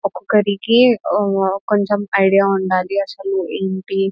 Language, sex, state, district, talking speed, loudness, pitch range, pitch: Telugu, female, Telangana, Nalgonda, 100 wpm, -17 LUFS, 195-205 Hz, 195 Hz